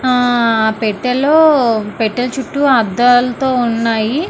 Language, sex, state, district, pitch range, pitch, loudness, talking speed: Telugu, female, Andhra Pradesh, Srikakulam, 225-265 Hz, 245 Hz, -13 LUFS, 85 wpm